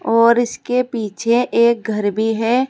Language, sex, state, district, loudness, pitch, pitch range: Hindi, female, Uttar Pradesh, Saharanpur, -17 LUFS, 230 Hz, 225-240 Hz